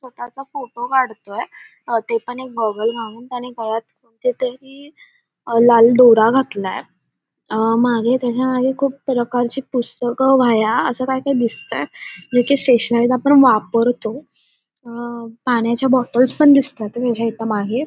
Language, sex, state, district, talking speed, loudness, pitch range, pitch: Marathi, female, Maharashtra, Dhule, 130 wpm, -17 LUFS, 230-260 Hz, 245 Hz